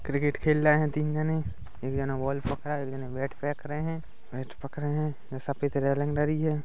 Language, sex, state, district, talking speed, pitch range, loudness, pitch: Hindi, male, Chhattisgarh, Rajnandgaon, 235 wpm, 135-150 Hz, -30 LUFS, 145 Hz